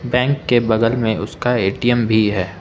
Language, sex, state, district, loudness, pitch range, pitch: Hindi, male, Arunachal Pradesh, Lower Dibang Valley, -17 LUFS, 110-125 Hz, 115 Hz